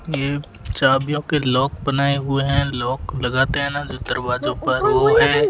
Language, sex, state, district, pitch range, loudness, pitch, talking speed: Hindi, male, Rajasthan, Bikaner, 135-145 Hz, -19 LUFS, 140 Hz, 175 wpm